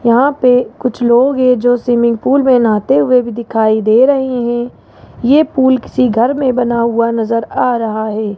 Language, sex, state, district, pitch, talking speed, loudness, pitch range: Hindi, male, Rajasthan, Jaipur, 245 Hz, 195 wpm, -12 LUFS, 230-255 Hz